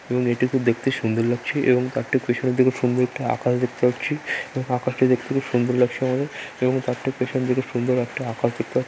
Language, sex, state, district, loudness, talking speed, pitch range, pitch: Bengali, male, West Bengal, Dakshin Dinajpur, -22 LUFS, 235 wpm, 125-130 Hz, 125 Hz